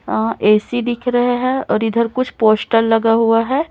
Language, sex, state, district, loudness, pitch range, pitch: Hindi, female, Chhattisgarh, Raipur, -16 LUFS, 220-245 Hz, 230 Hz